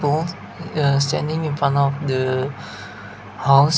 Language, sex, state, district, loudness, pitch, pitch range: English, male, Nagaland, Dimapur, -20 LUFS, 140 Hz, 130-145 Hz